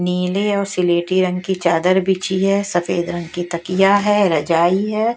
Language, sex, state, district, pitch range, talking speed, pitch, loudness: Hindi, female, Haryana, Jhajjar, 175-195 Hz, 175 wpm, 185 Hz, -17 LUFS